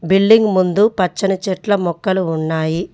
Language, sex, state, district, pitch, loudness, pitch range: Telugu, female, Telangana, Mahabubabad, 190 Hz, -16 LUFS, 170-200 Hz